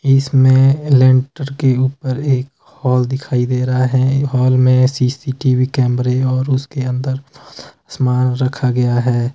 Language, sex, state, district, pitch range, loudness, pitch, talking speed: Hindi, male, Himachal Pradesh, Shimla, 125-135 Hz, -15 LUFS, 130 Hz, 135 wpm